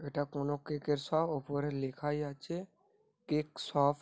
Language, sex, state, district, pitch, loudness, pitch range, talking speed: Bengali, male, West Bengal, North 24 Parganas, 145 Hz, -36 LUFS, 145-155 Hz, 180 wpm